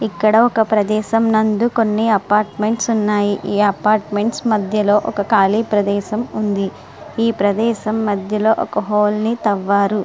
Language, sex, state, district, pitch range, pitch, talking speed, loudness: Telugu, female, Andhra Pradesh, Guntur, 205-220 Hz, 215 Hz, 125 wpm, -17 LUFS